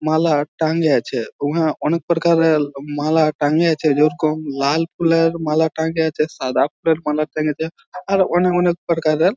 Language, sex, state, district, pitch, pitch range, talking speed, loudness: Bengali, male, West Bengal, Jhargram, 160 Hz, 150-165 Hz, 130 wpm, -18 LUFS